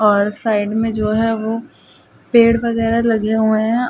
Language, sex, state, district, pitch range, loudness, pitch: Hindi, female, Bihar, Gaya, 215-230 Hz, -16 LUFS, 225 Hz